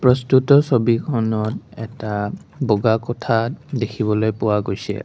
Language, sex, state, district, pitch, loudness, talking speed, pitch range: Assamese, male, Assam, Kamrup Metropolitan, 115 Hz, -19 LUFS, 95 wpm, 110-125 Hz